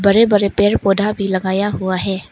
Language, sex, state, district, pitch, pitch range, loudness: Hindi, female, Arunachal Pradesh, Longding, 200 Hz, 190-205 Hz, -16 LUFS